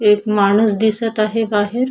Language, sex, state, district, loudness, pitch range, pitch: Marathi, female, Maharashtra, Chandrapur, -16 LUFS, 210-225 Hz, 215 Hz